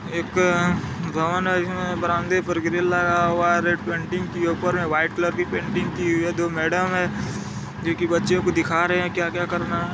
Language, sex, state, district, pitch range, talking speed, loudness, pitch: Maithili, male, Bihar, Supaul, 170-180 Hz, 185 wpm, -22 LUFS, 175 Hz